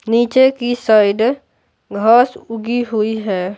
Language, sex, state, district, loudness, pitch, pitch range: Hindi, male, Bihar, Patna, -15 LUFS, 230 Hz, 215-245 Hz